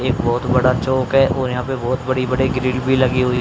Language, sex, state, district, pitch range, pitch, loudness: Hindi, male, Haryana, Rohtak, 125-130 Hz, 130 Hz, -18 LUFS